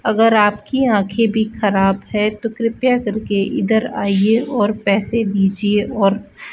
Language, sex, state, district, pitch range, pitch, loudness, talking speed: Hindi, female, Rajasthan, Bikaner, 200-230 Hz, 215 Hz, -17 LUFS, 145 wpm